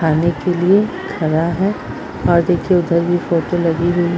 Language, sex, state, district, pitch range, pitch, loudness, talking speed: Hindi, female, Bihar, Purnia, 170-180 Hz, 175 Hz, -16 LUFS, 185 wpm